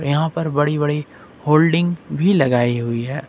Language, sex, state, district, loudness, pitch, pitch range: Hindi, male, Uttar Pradesh, Lucknow, -18 LUFS, 150 Hz, 135-165 Hz